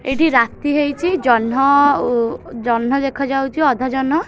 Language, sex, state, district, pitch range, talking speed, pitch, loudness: Odia, female, Odisha, Khordha, 240-290 Hz, 140 wpm, 270 Hz, -16 LUFS